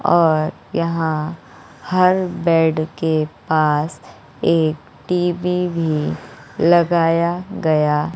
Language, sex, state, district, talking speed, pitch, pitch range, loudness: Hindi, female, Bihar, West Champaran, 90 wpm, 165 Hz, 155-175 Hz, -18 LUFS